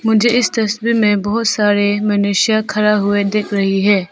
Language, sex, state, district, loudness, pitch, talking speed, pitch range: Hindi, female, Arunachal Pradesh, Papum Pare, -15 LUFS, 210 Hz, 175 wpm, 205-220 Hz